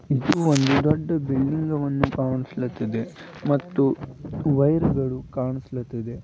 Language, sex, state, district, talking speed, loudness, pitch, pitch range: Kannada, male, Karnataka, Bidar, 95 wpm, -24 LUFS, 140 Hz, 130-150 Hz